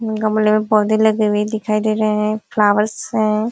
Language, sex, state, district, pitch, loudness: Hindi, female, Uttar Pradesh, Ghazipur, 215 Hz, -17 LUFS